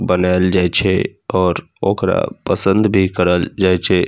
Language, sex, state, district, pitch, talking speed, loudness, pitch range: Maithili, male, Bihar, Saharsa, 90 Hz, 145 wpm, -16 LUFS, 90-95 Hz